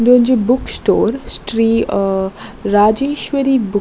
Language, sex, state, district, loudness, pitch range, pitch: Tulu, female, Karnataka, Dakshina Kannada, -15 LUFS, 205-250 Hz, 225 Hz